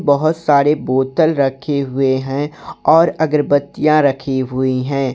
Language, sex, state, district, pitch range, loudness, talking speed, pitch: Hindi, male, Jharkhand, Garhwa, 135-150 Hz, -16 LUFS, 130 wpm, 140 Hz